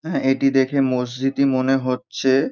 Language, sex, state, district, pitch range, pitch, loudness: Bengali, male, West Bengal, North 24 Parganas, 130-135 Hz, 135 Hz, -20 LUFS